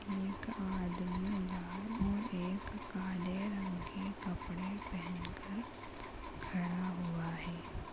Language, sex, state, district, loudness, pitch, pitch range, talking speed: Hindi, female, Chhattisgarh, Jashpur, -40 LUFS, 190 Hz, 180-200 Hz, 105 wpm